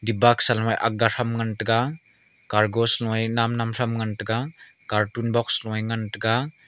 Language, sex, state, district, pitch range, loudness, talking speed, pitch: Wancho, male, Arunachal Pradesh, Longding, 110-120 Hz, -23 LUFS, 160 wpm, 115 Hz